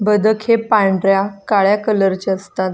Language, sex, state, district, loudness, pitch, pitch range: Marathi, female, Maharashtra, Solapur, -16 LUFS, 200 Hz, 195-215 Hz